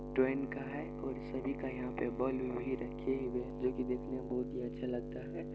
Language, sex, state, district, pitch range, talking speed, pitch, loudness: Maithili, male, Bihar, Supaul, 125-130 Hz, 215 wpm, 130 Hz, -38 LUFS